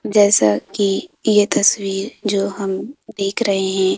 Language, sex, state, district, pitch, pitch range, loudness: Hindi, female, Madhya Pradesh, Bhopal, 200 Hz, 195-210 Hz, -17 LUFS